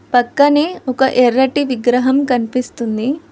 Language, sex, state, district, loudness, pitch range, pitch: Telugu, female, Telangana, Hyderabad, -15 LUFS, 245-280 Hz, 255 Hz